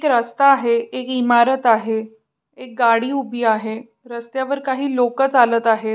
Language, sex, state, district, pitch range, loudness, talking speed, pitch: Marathi, female, Maharashtra, Pune, 230-260 Hz, -18 LUFS, 150 wpm, 240 Hz